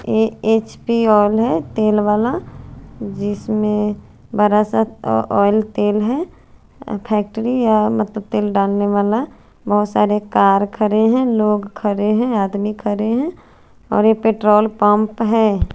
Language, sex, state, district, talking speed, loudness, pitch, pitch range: Hindi, female, Chandigarh, Chandigarh, 135 wpm, -17 LUFS, 210 Hz, 205-220 Hz